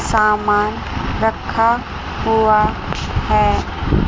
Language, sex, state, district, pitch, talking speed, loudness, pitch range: Hindi, male, Chandigarh, Chandigarh, 215 Hz, 60 wpm, -17 LUFS, 215-225 Hz